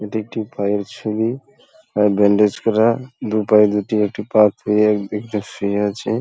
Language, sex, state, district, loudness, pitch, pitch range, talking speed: Bengali, male, West Bengal, Paschim Medinipur, -18 LUFS, 105 Hz, 105-110 Hz, 155 wpm